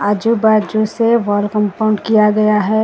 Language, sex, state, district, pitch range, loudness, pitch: Hindi, female, Maharashtra, Gondia, 210-220 Hz, -14 LUFS, 215 Hz